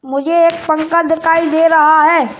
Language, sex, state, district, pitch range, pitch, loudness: Hindi, male, Madhya Pradesh, Bhopal, 310-330 Hz, 325 Hz, -11 LUFS